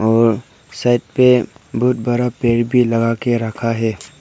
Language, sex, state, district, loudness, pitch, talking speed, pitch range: Hindi, male, Arunachal Pradesh, Papum Pare, -17 LUFS, 120 Hz, 155 wpm, 115-125 Hz